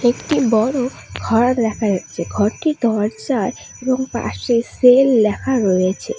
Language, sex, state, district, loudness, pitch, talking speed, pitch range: Bengali, female, West Bengal, Alipurduar, -17 LUFS, 235 Hz, 115 wpm, 215-255 Hz